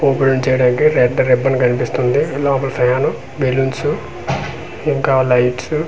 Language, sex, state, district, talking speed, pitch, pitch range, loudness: Telugu, male, Andhra Pradesh, Manyam, 110 wpm, 130 Hz, 125-135 Hz, -16 LUFS